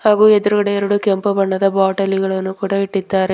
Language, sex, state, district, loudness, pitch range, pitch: Kannada, female, Karnataka, Bidar, -16 LUFS, 195-205 Hz, 195 Hz